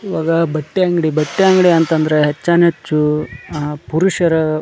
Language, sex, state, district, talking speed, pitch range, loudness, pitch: Kannada, male, Karnataka, Dharwad, 130 wpm, 150-170 Hz, -15 LUFS, 160 Hz